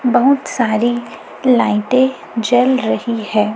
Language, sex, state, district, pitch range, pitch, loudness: Hindi, female, Chhattisgarh, Raipur, 220-255 Hz, 240 Hz, -15 LUFS